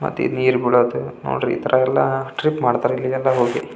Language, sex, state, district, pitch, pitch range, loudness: Kannada, male, Karnataka, Belgaum, 130 Hz, 125-135 Hz, -19 LUFS